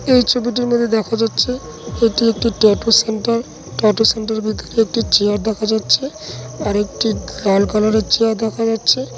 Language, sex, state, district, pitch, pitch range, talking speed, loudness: Bengali, male, West Bengal, Dakshin Dinajpur, 220 Hz, 210-230 Hz, 185 wpm, -16 LUFS